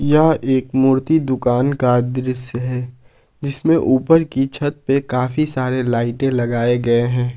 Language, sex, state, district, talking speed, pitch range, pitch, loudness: Hindi, male, Jharkhand, Ranchi, 145 wpm, 125-140 Hz, 130 Hz, -17 LUFS